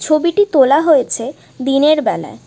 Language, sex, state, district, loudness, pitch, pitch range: Bengali, female, West Bengal, Jhargram, -14 LUFS, 300 Hz, 270-315 Hz